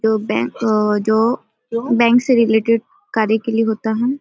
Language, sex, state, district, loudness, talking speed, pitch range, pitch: Hindi, female, Bihar, Samastipur, -17 LUFS, 170 wpm, 220-235 Hz, 225 Hz